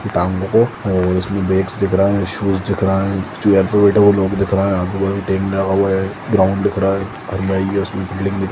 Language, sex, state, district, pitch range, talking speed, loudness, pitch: Hindi, male, Chhattisgarh, Sukma, 95-100 Hz, 220 wpm, -17 LUFS, 95 Hz